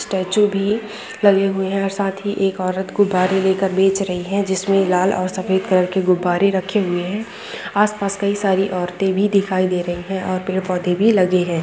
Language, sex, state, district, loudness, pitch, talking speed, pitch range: Hindi, female, West Bengal, Dakshin Dinajpur, -18 LUFS, 190 Hz, 205 wpm, 185-200 Hz